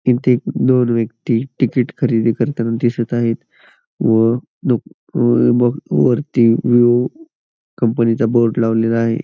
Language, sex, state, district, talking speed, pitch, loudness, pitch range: Marathi, male, Maharashtra, Pune, 105 wpm, 120 Hz, -16 LUFS, 115-125 Hz